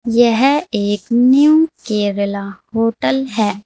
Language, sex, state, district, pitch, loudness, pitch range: Hindi, female, Uttar Pradesh, Saharanpur, 230 Hz, -15 LUFS, 205-265 Hz